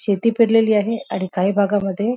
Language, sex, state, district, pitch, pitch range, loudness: Marathi, female, Maharashtra, Nagpur, 205 Hz, 195-225 Hz, -18 LUFS